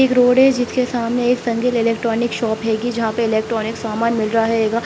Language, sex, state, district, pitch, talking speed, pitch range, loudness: Hindi, female, Bihar, Sitamarhi, 230 Hz, 210 wpm, 225-245 Hz, -18 LUFS